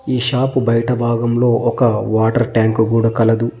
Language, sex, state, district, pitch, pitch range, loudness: Telugu, male, Telangana, Mahabubabad, 115 Hz, 115-120 Hz, -15 LUFS